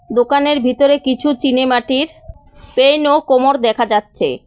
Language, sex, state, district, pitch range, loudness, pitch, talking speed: Bengali, female, West Bengal, Cooch Behar, 250-285 Hz, -14 LUFS, 265 Hz, 135 wpm